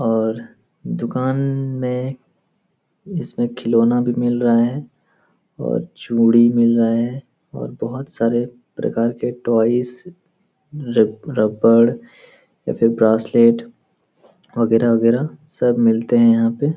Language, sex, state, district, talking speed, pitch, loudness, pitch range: Hindi, male, Bihar, Jahanabad, 120 wpm, 120 Hz, -18 LUFS, 115-130 Hz